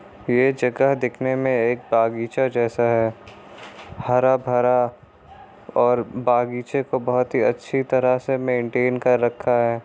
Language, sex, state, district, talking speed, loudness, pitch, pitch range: Hindi, male, Bihar, Kishanganj, 135 wpm, -21 LUFS, 125 Hz, 120-130 Hz